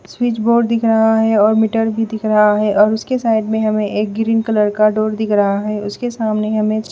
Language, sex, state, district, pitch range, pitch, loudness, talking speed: Hindi, female, Bihar, West Champaran, 210-225 Hz, 220 Hz, -15 LUFS, 235 wpm